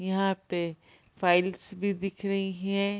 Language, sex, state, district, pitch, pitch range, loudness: Hindi, female, Bihar, Kishanganj, 195 Hz, 180-195 Hz, -29 LUFS